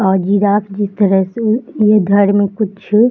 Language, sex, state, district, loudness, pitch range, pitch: Hindi, female, Bihar, Samastipur, -14 LUFS, 200-215 Hz, 205 Hz